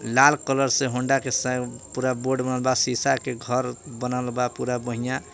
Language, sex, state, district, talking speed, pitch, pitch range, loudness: Bhojpuri, male, Jharkhand, Palamu, 190 wpm, 125 Hz, 125-130 Hz, -24 LUFS